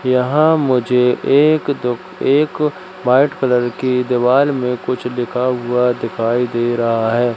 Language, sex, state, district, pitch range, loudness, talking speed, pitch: Hindi, male, Madhya Pradesh, Katni, 120-140 Hz, -16 LUFS, 140 wpm, 125 Hz